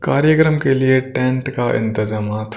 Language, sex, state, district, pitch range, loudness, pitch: Hindi, male, Punjab, Kapurthala, 110-135 Hz, -17 LUFS, 130 Hz